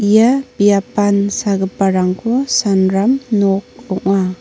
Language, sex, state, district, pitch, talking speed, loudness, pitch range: Garo, female, Meghalaya, North Garo Hills, 200 Hz, 80 wpm, -15 LUFS, 195-230 Hz